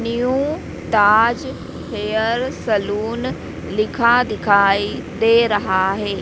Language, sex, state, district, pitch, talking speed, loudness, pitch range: Hindi, female, Madhya Pradesh, Dhar, 220 Hz, 85 wpm, -18 LUFS, 205-235 Hz